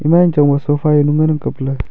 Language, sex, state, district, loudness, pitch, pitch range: Wancho, male, Arunachal Pradesh, Longding, -14 LUFS, 150 Hz, 140-155 Hz